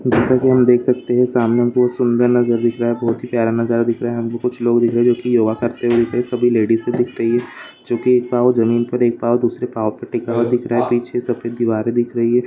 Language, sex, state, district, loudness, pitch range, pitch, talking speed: Hindi, male, Bihar, Jahanabad, -17 LUFS, 115-125 Hz, 120 Hz, 300 wpm